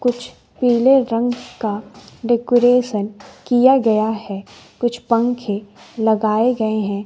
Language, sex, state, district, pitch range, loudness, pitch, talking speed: Hindi, female, Bihar, West Champaran, 215-245 Hz, -18 LUFS, 235 Hz, 110 wpm